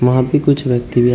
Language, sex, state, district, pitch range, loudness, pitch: Hindi, male, Uttar Pradesh, Shamli, 125-140 Hz, -15 LUFS, 125 Hz